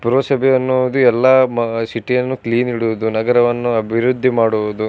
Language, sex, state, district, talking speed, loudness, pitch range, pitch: Kannada, male, Karnataka, Bijapur, 135 wpm, -15 LUFS, 115-130 Hz, 120 Hz